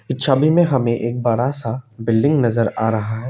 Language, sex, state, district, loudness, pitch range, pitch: Hindi, male, Assam, Kamrup Metropolitan, -18 LUFS, 115-135 Hz, 120 Hz